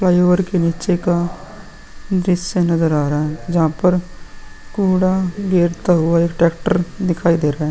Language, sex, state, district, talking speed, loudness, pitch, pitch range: Hindi, male, Uttar Pradesh, Muzaffarnagar, 155 wpm, -17 LUFS, 175 Hz, 165-185 Hz